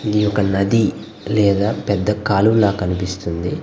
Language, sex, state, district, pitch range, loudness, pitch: Telugu, male, Andhra Pradesh, Guntur, 100-105 Hz, -18 LUFS, 100 Hz